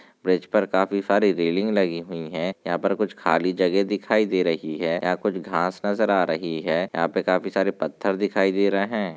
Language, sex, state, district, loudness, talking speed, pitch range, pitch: Hindi, male, Maharashtra, Nagpur, -23 LUFS, 210 wpm, 85-100 Hz, 95 Hz